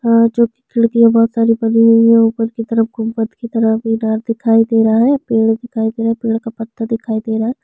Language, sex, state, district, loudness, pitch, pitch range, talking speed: Hindi, female, Chhattisgarh, Sukma, -14 LUFS, 230 Hz, 225-230 Hz, 245 wpm